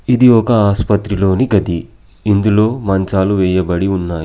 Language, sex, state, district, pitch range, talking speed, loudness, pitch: Telugu, male, Telangana, Adilabad, 95-105 Hz, 115 wpm, -14 LUFS, 100 Hz